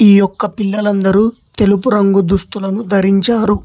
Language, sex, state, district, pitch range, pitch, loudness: Telugu, male, Telangana, Hyderabad, 195-210 Hz, 205 Hz, -13 LUFS